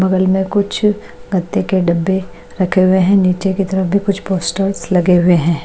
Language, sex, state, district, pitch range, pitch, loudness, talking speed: Hindi, female, Odisha, Malkangiri, 180-195 Hz, 190 Hz, -15 LUFS, 190 wpm